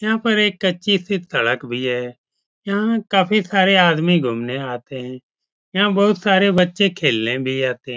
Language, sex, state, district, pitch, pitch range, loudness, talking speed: Hindi, male, Uttar Pradesh, Etah, 180 Hz, 130-200 Hz, -18 LUFS, 175 wpm